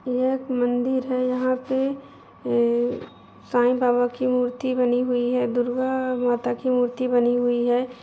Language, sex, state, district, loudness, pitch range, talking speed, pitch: Hindi, female, Uttar Pradesh, Etah, -23 LUFS, 245-255 Hz, 155 wpm, 250 Hz